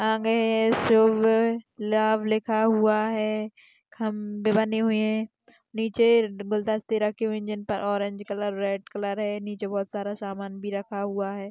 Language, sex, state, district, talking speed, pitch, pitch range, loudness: Hindi, female, Maharashtra, Dhule, 140 wpm, 215 Hz, 205-220 Hz, -25 LUFS